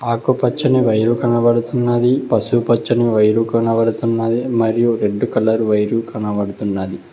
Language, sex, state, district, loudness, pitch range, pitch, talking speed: Telugu, male, Telangana, Mahabubabad, -16 LUFS, 110-120 Hz, 115 Hz, 110 wpm